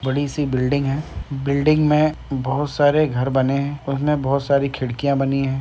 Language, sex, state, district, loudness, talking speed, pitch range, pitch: Hindi, male, Uttar Pradesh, Gorakhpur, -20 LUFS, 180 wpm, 135-145 Hz, 140 Hz